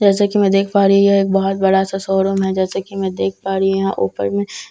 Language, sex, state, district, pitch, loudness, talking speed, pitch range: Hindi, female, Bihar, Katihar, 195 Hz, -16 LUFS, 330 wpm, 190-195 Hz